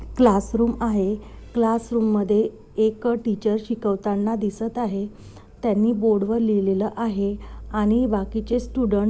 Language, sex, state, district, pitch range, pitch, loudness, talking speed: Marathi, female, Maharashtra, Nagpur, 205-230 Hz, 220 Hz, -23 LUFS, 130 wpm